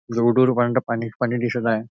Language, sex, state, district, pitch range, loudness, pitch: Marathi, male, Maharashtra, Nagpur, 115-125 Hz, -21 LUFS, 120 Hz